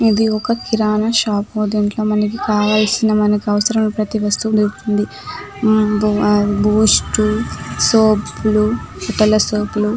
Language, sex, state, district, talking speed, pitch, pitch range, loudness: Telugu, female, Telangana, Nalgonda, 115 wpm, 215 Hz, 210-220 Hz, -16 LUFS